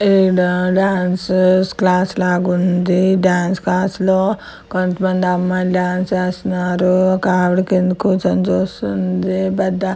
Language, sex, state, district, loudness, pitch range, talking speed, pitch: Telugu, female, Telangana, Karimnagar, -16 LUFS, 180-190 Hz, 95 wpm, 185 Hz